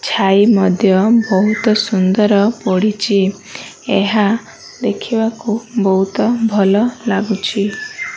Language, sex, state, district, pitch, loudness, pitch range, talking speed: Odia, female, Odisha, Malkangiri, 210 Hz, -15 LUFS, 195-225 Hz, 75 wpm